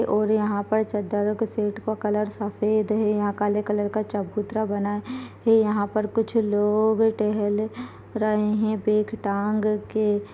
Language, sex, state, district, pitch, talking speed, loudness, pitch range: Hindi, female, Chhattisgarh, Balrampur, 210 Hz, 160 wpm, -24 LUFS, 205-215 Hz